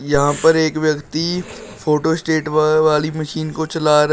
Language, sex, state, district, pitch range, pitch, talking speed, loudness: Hindi, male, Uttar Pradesh, Shamli, 150-160 Hz, 155 Hz, 175 wpm, -17 LUFS